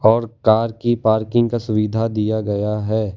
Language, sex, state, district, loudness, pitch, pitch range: Hindi, male, Gujarat, Valsad, -19 LUFS, 110 Hz, 105-115 Hz